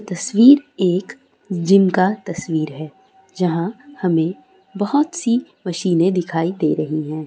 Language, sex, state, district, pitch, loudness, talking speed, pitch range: Hindi, female, Uttarakhand, Uttarkashi, 185 Hz, -18 LUFS, 125 wpm, 170-225 Hz